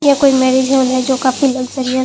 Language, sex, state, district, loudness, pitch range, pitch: Hindi, female, Assam, Hailakandi, -13 LUFS, 255-270 Hz, 260 Hz